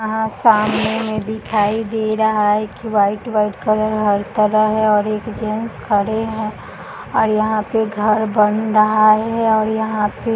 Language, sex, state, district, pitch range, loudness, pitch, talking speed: Hindi, female, Chhattisgarh, Balrampur, 215-220 Hz, -17 LUFS, 215 Hz, 170 wpm